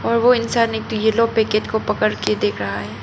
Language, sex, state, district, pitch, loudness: Hindi, female, Arunachal Pradesh, Papum Pare, 215 Hz, -19 LUFS